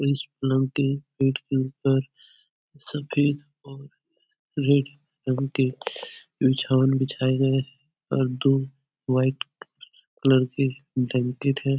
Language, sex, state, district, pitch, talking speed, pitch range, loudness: Hindi, male, Uttar Pradesh, Etah, 135 Hz, 95 wpm, 130-145 Hz, -25 LUFS